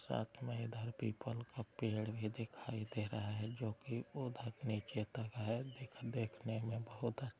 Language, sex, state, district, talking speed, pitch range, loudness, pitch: Hindi, male, Bihar, Araria, 180 wpm, 110-120 Hz, -44 LUFS, 115 Hz